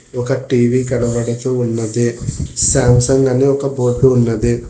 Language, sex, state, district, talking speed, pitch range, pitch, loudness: Telugu, male, Telangana, Hyderabad, 115 wpm, 120-130 Hz, 125 Hz, -15 LUFS